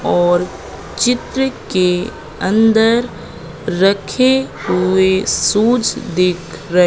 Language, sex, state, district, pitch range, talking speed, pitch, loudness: Hindi, female, Madhya Pradesh, Katni, 180-230 Hz, 80 wpm, 190 Hz, -15 LUFS